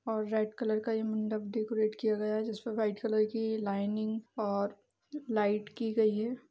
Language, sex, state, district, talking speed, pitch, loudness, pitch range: Hindi, female, Uttar Pradesh, Budaun, 175 wpm, 215 Hz, -33 LUFS, 215-225 Hz